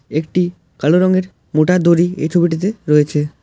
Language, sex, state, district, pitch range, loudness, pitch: Bengali, male, West Bengal, Alipurduar, 155-180 Hz, -15 LUFS, 170 Hz